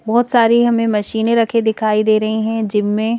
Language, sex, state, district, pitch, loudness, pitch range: Hindi, female, Madhya Pradesh, Bhopal, 220 Hz, -15 LUFS, 215-230 Hz